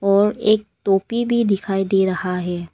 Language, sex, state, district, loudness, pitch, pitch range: Hindi, female, Arunachal Pradesh, Lower Dibang Valley, -19 LUFS, 195 Hz, 190-215 Hz